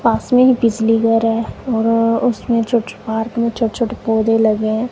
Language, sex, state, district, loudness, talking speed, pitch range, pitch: Hindi, female, Punjab, Kapurthala, -16 LUFS, 195 wpm, 225-235 Hz, 230 Hz